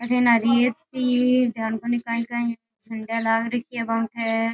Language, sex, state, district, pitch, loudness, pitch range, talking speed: Rajasthani, female, Rajasthan, Nagaur, 230 Hz, -22 LUFS, 225-245 Hz, 160 wpm